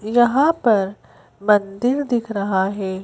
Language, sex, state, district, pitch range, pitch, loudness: Hindi, female, Madhya Pradesh, Bhopal, 195-240 Hz, 210 Hz, -19 LUFS